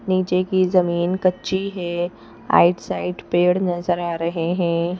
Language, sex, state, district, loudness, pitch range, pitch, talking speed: Hindi, female, Madhya Pradesh, Bhopal, -20 LUFS, 175-185 Hz, 180 Hz, 130 wpm